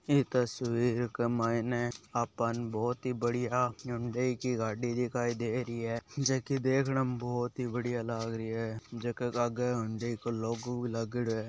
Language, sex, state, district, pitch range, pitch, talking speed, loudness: Marwari, male, Rajasthan, Nagaur, 115-125 Hz, 120 Hz, 175 wpm, -33 LUFS